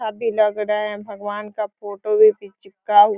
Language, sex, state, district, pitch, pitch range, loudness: Hindi, female, Bihar, Sitamarhi, 210 Hz, 205-215 Hz, -20 LUFS